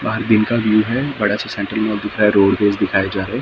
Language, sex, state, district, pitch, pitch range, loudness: Hindi, male, Maharashtra, Mumbai Suburban, 105 Hz, 100-110 Hz, -17 LUFS